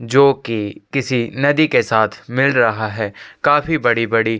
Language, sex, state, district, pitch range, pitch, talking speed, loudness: Hindi, male, Chhattisgarh, Korba, 110-140 Hz, 120 Hz, 165 wpm, -17 LUFS